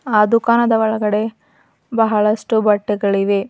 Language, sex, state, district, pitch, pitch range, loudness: Kannada, female, Karnataka, Bidar, 215 Hz, 210-225 Hz, -16 LUFS